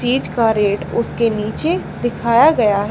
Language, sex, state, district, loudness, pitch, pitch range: Hindi, female, Haryana, Charkhi Dadri, -17 LUFS, 230 Hz, 210-240 Hz